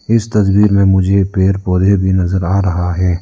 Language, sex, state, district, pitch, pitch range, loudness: Hindi, male, Arunachal Pradesh, Lower Dibang Valley, 95 Hz, 90-100 Hz, -13 LUFS